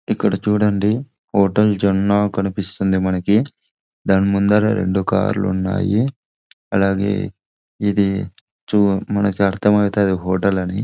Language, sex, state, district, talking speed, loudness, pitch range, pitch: Telugu, male, Andhra Pradesh, Anantapur, 90 wpm, -18 LUFS, 95-105 Hz, 100 Hz